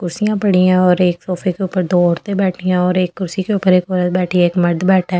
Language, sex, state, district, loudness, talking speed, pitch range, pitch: Hindi, female, Delhi, New Delhi, -15 LUFS, 290 wpm, 180-190 Hz, 185 Hz